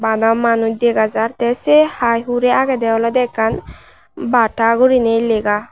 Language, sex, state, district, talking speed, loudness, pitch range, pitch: Chakma, female, Tripura, West Tripura, 145 wpm, -15 LUFS, 225-245 Hz, 230 Hz